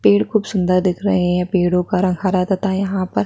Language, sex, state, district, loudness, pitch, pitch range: Hindi, female, Chhattisgarh, Sukma, -18 LUFS, 185 Hz, 180-195 Hz